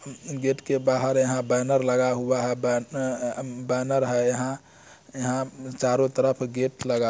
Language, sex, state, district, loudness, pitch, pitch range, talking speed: Hindi, male, Bihar, Muzaffarpur, -25 LUFS, 130 Hz, 125-135 Hz, 150 wpm